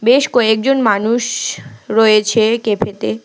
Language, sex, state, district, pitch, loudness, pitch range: Bengali, female, West Bengal, Alipurduar, 225 Hz, -14 LUFS, 215-240 Hz